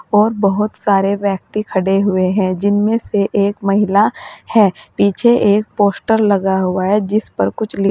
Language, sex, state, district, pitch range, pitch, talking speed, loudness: Hindi, female, Uttar Pradesh, Saharanpur, 195-210 Hz, 205 Hz, 165 wpm, -15 LUFS